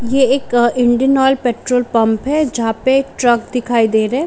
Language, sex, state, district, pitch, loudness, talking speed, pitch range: Hindi, female, Jharkhand, Sahebganj, 245 Hz, -14 LUFS, 210 wpm, 235-265 Hz